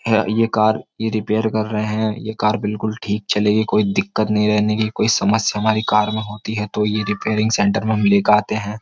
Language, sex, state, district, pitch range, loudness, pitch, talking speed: Hindi, male, Uttar Pradesh, Jyotiba Phule Nagar, 105-110 Hz, -18 LUFS, 110 Hz, 225 wpm